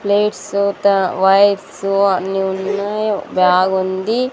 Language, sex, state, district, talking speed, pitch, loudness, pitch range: Telugu, female, Andhra Pradesh, Sri Satya Sai, 95 wpm, 195 Hz, -16 LUFS, 190-200 Hz